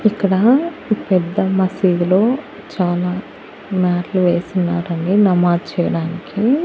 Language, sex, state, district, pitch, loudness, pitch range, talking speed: Telugu, female, Andhra Pradesh, Annamaya, 185 Hz, -17 LUFS, 175-205 Hz, 70 wpm